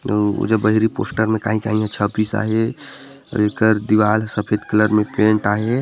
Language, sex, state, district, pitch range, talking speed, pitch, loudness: Chhattisgarhi, male, Chhattisgarh, Sarguja, 105-110 Hz, 165 wpm, 110 Hz, -18 LUFS